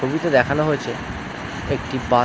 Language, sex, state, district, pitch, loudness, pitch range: Bengali, male, West Bengal, North 24 Parganas, 130 Hz, -22 LUFS, 120-140 Hz